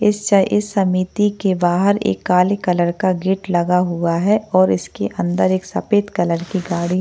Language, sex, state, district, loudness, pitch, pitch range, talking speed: Hindi, female, Maharashtra, Chandrapur, -17 LUFS, 185 Hz, 175-200 Hz, 190 wpm